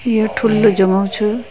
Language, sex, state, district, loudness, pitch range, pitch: Hindi, female, Uttarakhand, Uttarkashi, -15 LUFS, 200-225 Hz, 215 Hz